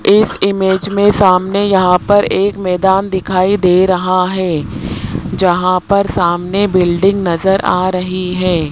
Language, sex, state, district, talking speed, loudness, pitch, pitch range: Hindi, male, Rajasthan, Jaipur, 140 wpm, -13 LUFS, 185 Hz, 180-200 Hz